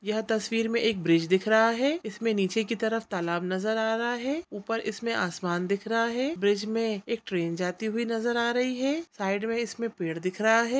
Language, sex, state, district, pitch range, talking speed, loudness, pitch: Hindi, female, Chhattisgarh, Raigarh, 195-230 Hz, 220 wpm, -28 LUFS, 225 Hz